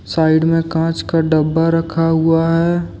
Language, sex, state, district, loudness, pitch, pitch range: Hindi, male, Jharkhand, Deoghar, -15 LUFS, 165 Hz, 160-165 Hz